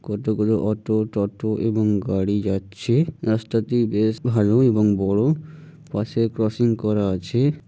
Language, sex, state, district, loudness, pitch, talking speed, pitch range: Bengali, male, West Bengal, Jhargram, -21 LUFS, 110 Hz, 125 wpm, 105-120 Hz